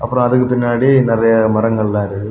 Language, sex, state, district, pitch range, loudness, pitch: Tamil, male, Tamil Nadu, Kanyakumari, 110-125 Hz, -14 LUFS, 115 Hz